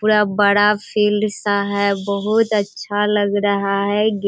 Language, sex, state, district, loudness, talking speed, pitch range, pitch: Hindi, female, Bihar, Sitamarhi, -17 LUFS, 170 wpm, 200-210 Hz, 205 Hz